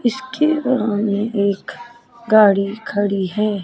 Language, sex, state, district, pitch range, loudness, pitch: Hindi, female, Chandigarh, Chandigarh, 200-240 Hz, -18 LUFS, 215 Hz